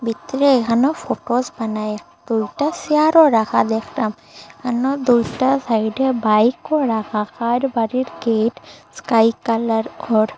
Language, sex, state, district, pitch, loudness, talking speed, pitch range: Bengali, female, Assam, Hailakandi, 235 Hz, -18 LUFS, 110 wpm, 220-265 Hz